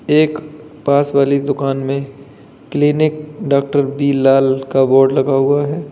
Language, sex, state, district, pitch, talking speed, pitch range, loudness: Hindi, male, Uttar Pradesh, Lalitpur, 140 Hz, 140 wpm, 135-145 Hz, -15 LUFS